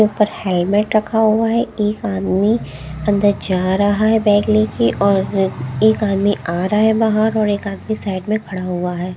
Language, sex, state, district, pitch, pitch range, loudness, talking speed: Hindi, female, Haryana, Jhajjar, 205 Hz, 185-215 Hz, -17 LUFS, 185 wpm